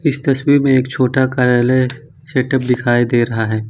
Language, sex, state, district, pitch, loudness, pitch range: Hindi, male, Jharkhand, Ranchi, 130 Hz, -15 LUFS, 120-135 Hz